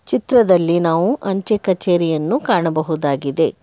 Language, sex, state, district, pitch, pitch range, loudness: Kannada, male, Karnataka, Bangalore, 175 Hz, 160-200 Hz, -17 LUFS